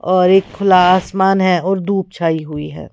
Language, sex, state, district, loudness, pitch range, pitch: Hindi, female, Odisha, Khordha, -14 LUFS, 175-190 Hz, 185 Hz